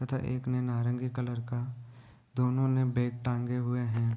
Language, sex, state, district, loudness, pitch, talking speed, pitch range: Hindi, male, Bihar, Gopalganj, -32 LUFS, 125 Hz, 170 wpm, 120-125 Hz